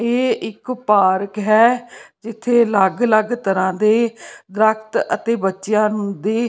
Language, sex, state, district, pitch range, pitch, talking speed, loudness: Punjabi, female, Punjab, Pathankot, 200-235 Hz, 215 Hz, 140 wpm, -17 LUFS